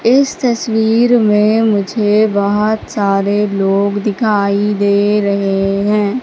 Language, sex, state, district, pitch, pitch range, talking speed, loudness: Hindi, female, Madhya Pradesh, Katni, 210 Hz, 200-220 Hz, 105 wpm, -13 LUFS